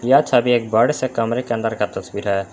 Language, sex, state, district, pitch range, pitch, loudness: Hindi, male, Jharkhand, Palamu, 105-120 Hz, 115 Hz, -19 LUFS